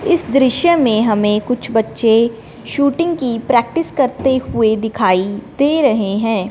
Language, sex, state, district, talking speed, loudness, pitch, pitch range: Hindi, male, Punjab, Fazilka, 140 wpm, -15 LUFS, 235 Hz, 220-280 Hz